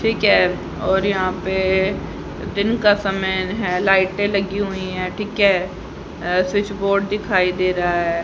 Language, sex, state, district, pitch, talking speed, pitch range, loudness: Hindi, female, Haryana, Rohtak, 190 Hz, 160 wpm, 185-200 Hz, -19 LUFS